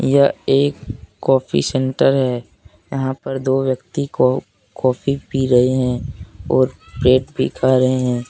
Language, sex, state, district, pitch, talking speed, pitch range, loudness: Hindi, male, Jharkhand, Deoghar, 130 Hz, 145 wpm, 125-135 Hz, -18 LUFS